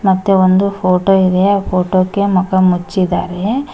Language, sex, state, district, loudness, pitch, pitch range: Kannada, female, Karnataka, Koppal, -13 LUFS, 190 Hz, 185-200 Hz